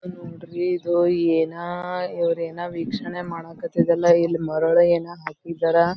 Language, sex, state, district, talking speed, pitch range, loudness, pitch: Kannada, female, Karnataka, Belgaum, 110 wpm, 165-175 Hz, -22 LUFS, 170 Hz